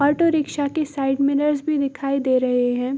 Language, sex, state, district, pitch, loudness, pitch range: Hindi, female, Bihar, Sitamarhi, 280 Hz, -21 LUFS, 270-295 Hz